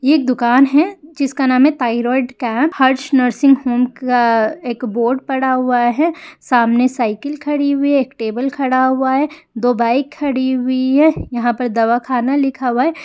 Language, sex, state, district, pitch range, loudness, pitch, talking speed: Hindi, female, Jharkhand, Sahebganj, 245-280 Hz, -15 LUFS, 260 Hz, 170 wpm